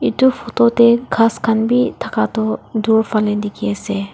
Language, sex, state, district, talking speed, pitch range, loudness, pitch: Nagamese, female, Nagaland, Dimapur, 175 wpm, 205-235 Hz, -16 LUFS, 220 Hz